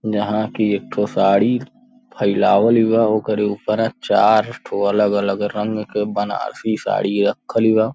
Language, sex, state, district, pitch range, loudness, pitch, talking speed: Bhojpuri, male, Uttar Pradesh, Gorakhpur, 100-110 Hz, -18 LUFS, 105 Hz, 135 wpm